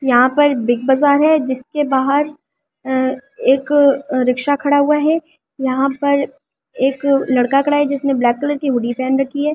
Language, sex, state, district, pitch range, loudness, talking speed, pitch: Hindi, female, Delhi, New Delhi, 265-290 Hz, -16 LUFS, 165 wpm, 275 Hz